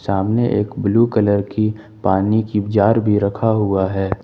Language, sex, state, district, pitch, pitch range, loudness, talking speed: Hindi, male, Jharkhand, Ranchi, 105 Hz, 100-110 Hz, -17 LUFS, 170 wpm